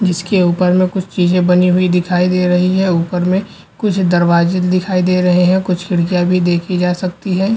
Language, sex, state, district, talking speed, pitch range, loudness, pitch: Hindi, male, Uttar Pradesh, Varanasi, 205 wpm, 180-185 Hz, -14 LUFS, 180 Hz